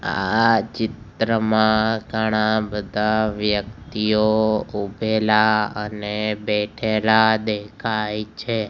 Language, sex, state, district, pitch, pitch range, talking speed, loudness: Gujarati, male, Gujarat, Gandhinagar, 110 Hz, 105-110 Hz, 70 wpm, -20 LUFS